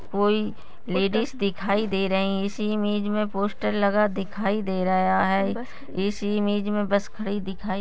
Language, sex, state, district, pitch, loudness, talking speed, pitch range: Hindi, female, Goa, North and South Goa, 200 Hz, -25 LUFS, 170 wpm, 195-210 Hz